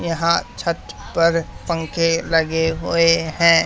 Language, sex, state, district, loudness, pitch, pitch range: Hindi, male, Haryana, Charkhi Dadri, -19 LUFS, 165 Hz, 165-170 Hz